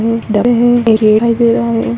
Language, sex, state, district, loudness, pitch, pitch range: Hindi, female, Andhra Pradesh, Visakhapatnam, -11 LUFS, 230 Hz, 225-235 Hz